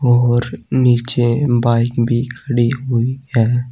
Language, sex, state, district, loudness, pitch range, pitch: Hindi, male, Uttar Pradesh, Saharanpur, -16 LUFS, 120-125 Hz, 120 Hz